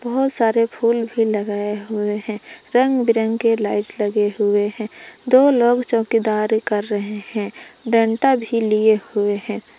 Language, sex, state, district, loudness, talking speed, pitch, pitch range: Hindi, female, Jharkhand, Palamu, -18 LUFS, 145 wpm, 220 Hz, 210-235 Hz